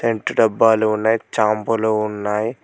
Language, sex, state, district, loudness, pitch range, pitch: Telugu, male, Telangana, Mahabubabad, -18 LUFS, 105-115 Hz, 110 Hz